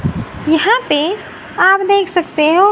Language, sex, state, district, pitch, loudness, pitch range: Hindi, female, Haryana, Rohtak, 370 Hz, -13 LUFS, 320-400 Hz